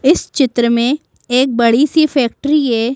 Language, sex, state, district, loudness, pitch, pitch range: Hindi, female, Madhya Pradesh, Bhopal, -14 LUFS, 260 Hz, 240-295 Hz